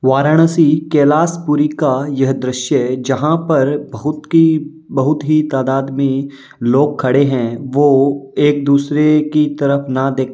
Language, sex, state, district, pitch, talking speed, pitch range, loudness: Hindi, male, Uttar Pradesh, Varanasi, 140 Hz, 140 wpm, 135-150 Hz, -14 LUFS